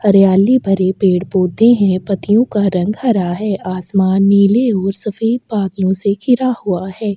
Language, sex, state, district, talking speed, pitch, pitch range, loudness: Hindi, female, Bihar, Kishanganj, 150 wpm, 195 Hz, 190-215 Hz, -14 LUFS